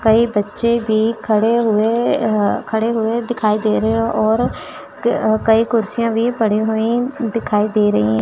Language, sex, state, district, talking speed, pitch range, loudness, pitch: Hindi, female, Chandigarh, Chandigarh, 170 wpm, 215-230 Hz, -17 LUFS, 220 Hz